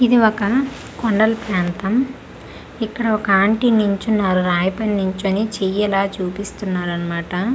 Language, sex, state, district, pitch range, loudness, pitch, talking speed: Telugu, female, Andhra Pradesh, Manyam, 190-220 Hz, -19 LUFS, 205 Hz, 125 wpm